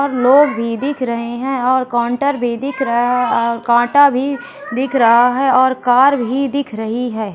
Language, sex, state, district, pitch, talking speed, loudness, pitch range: Hindi, female, Madhya Pradesh, Katni, 255 Hz, 190 wpm, -15 LUFS, 235-275 Hz